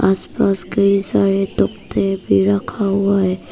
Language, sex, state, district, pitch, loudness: Hindi, female, Arunachal Pradesh, Papum Pare, 195 Hz, -17 LUFS